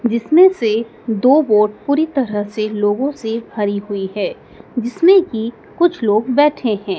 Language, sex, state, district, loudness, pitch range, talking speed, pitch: Hindi, female, Madhya Pradesh, Dhar, -16 LUFS, 210-285 Hz, 155 wpm, 225 Hz